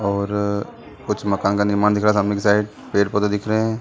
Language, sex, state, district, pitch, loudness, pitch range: Hindi, male, Chhattisgarh, Sarguja, 105 Hz, -20 LUFS, 100-105 Hz